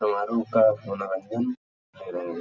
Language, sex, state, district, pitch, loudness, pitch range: Hindi, male, Uttar Pradesh, Etah, 105 Hz, -26 LUFS, 100-115 Hz